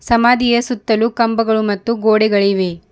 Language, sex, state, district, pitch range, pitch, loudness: Kannada, female, Karnataka, Bidar, 210-235 Hz, 225 Hz, -15 LUFS